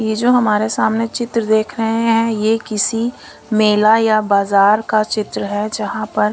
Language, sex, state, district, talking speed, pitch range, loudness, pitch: Hindi, female, Punjab, Kapurthala, 170 wpm, 210-225 Hz, -16 LUFS, 220 Hz